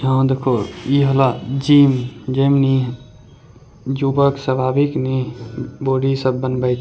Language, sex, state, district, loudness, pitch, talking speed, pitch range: Angika, male, Bihar, Bhagalpur, -17 LUFS, 130 Hz, 140 wpm, 125-135 Hz